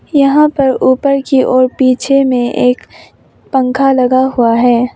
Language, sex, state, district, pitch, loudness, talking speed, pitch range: Hindi, female, Arunachal Pradesh, Longding, 260 Hz, -11 LUFS, 145 wpm, 250-275 Hz